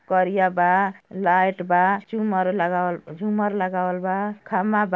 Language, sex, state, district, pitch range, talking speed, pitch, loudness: Bhojpuri, female, Uttar Pradesh, Ghazipur, 180-200 Hz, 135 wpm, 185 Hz, -22 LUFS